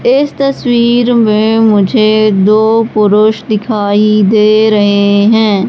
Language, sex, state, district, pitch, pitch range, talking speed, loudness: Hindi, female, Madhya Pradesh, Katni, 215 Hz, 210-225 Hz, 105 wpm, -9 LUFS